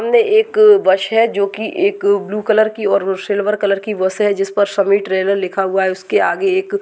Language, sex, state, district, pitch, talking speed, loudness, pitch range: Hindi, female, Maharashtra, Chandrapur, 205 Hz, 230 wpm, -15 LUFS, 195-290 Hz